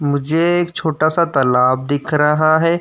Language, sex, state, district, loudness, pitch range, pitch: Hindi, male, Uttar Pradesh, Jyotiba Phule Nagar, -15 LUFS, 140-165 Hz, 155 Hz